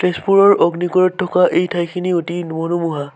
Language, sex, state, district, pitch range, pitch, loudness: Assamese, male, Assam, Sonitpur, 170-185 Hz, 175 Hz, -16 LUFS